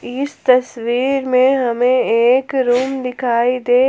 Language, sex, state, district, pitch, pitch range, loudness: Hindi, female, Jharkhand, Palamu, 255 Hz, 245-265 Hz, -16 LUFS